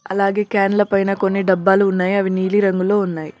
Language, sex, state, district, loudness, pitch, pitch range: Telugu, female, Telangana, Mahabubabad, -17 LUFS, 195 Hz, 190-200 Hz